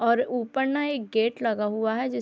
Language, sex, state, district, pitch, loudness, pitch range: Hindi, female, Bihar, Sitamarhi, 235 Hz, -26 LUFS, 220-255 Hz